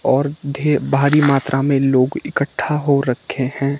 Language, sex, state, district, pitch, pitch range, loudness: Hindi, male, Himachal Pradesh, Shimla, 140 Hz, 135-145 Hz, -17 LUFS